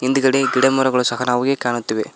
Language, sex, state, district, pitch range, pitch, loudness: Kannada, male, Karnataka, Koppal, 125-135 Hz, 125 Hz, -17 LUFS